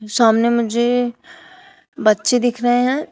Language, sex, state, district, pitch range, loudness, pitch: Hindi, female, Uttar Pradesh, Shamli, 235-280 Hz, -17 LUFS, 245 Hz